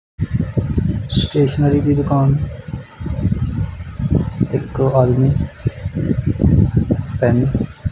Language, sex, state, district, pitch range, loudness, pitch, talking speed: Punjabi, male, Punjab, Kapurthala, 125-145 Hz, -18 LUFS, 135 Hz, 45 wpm